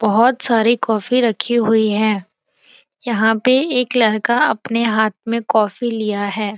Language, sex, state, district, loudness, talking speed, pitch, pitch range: Hindi, female, Bihar, Saran, -17 LUFS, 145 wpm, 225 Hz, 215-240 Hz